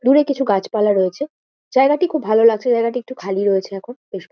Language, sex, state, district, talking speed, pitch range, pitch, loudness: Bengali, female, West Bengal, Kolkata, 195 wpm, 200-270 Hz, 230 Hz, -17 LUFS